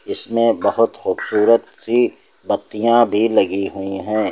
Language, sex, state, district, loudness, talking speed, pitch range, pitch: Hindi, male, Uttar Pradesh, Lucknow, -17 LUFS, 125 wpm, 105-115 Hz, 115 Hz